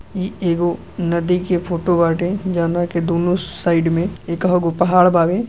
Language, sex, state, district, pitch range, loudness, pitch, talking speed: Bhojpuri, female, Uttar Pradesh, Gorakhpur, 170-180 Hz, -18 LUFS, 175 Hz, 165 wpm